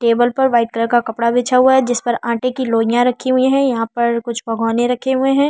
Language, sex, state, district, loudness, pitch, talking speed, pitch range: Hindi, female, Delhi, New Delhi, -16 LUFS, 240 Hz, 260 wpm, 235-260 Hz